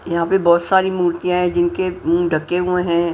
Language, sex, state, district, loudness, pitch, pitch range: Hindi, female, Punjab, Pathankot, -17 LUFS, 175 Hz, 170-180 Hz